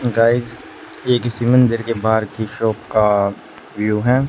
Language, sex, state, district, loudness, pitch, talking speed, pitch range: Hindi, male, Haryana, Charkhi Dadri, -17 LUFS, 115 Hz, 110 wpm, 105-120 Hz